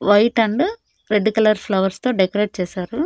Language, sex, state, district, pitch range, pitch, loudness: Telugu, female, Andhra Pradesh, Annamaya, 195-230 Hz, 210 Hz, -19 LUFS